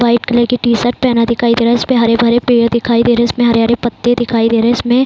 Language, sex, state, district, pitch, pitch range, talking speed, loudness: Hindi, female, Bihar, Saran, 235 Hz, 235-240 Hz, 295 wpm, -12 LUFS